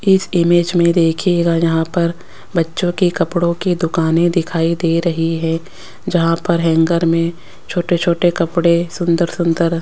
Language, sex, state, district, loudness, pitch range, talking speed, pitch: Hindi, female, Rajasthan, Jaipur, -16 LUFS, 165-175 Hz, 155 wpm, 170 Hz